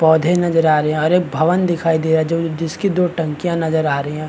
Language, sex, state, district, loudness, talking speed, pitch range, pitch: Hindi, male, Chhattisgarh, Bastar, -17 LUFS, 280 wpm, 155-175 Hz, 165 Hz